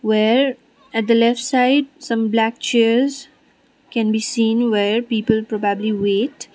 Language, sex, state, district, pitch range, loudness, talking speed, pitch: English, female, Sikkim, Gangtok, 220-255 Hz, -18 LUFS, 135 wpm, 230 Hz